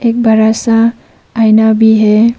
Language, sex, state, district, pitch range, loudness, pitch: Hindi, female, Arunachal Pradesh, Papum Pare, 220-230 Hz, -9 LUFS, 220 Hz